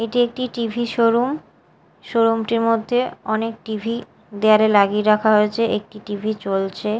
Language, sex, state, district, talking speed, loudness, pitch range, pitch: Bengali, female, Odisha, Malkangiri, 135 wpm, -19 LUFS, 210-230 Hz, 225 Hz